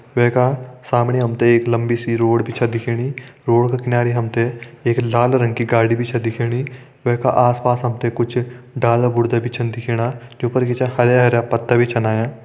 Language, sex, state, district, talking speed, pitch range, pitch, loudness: Hindi, male, Uttarakhand, Tehri Garhwal, 210 wpm, 115-125 Hz, 120 Hz, -18 LUFS